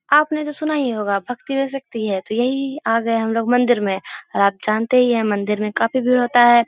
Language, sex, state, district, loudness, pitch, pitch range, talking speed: Hindi, female, Bihar, Darbhanga, -19 LUFS, 240 Hz, 215-265 Hz, 250 wpm